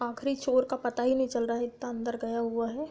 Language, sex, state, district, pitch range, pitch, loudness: Hindi, female, Uttar Pradesh, Budaun, 235-260 Hz, 240 Hz, -30 LUFS